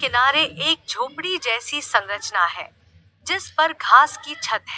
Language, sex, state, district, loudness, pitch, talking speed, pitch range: Hindi, female, Uttar Pradesh, Lalitpur, -20 LUFS, 295 Hz, 150 wpm, 245-320 Hz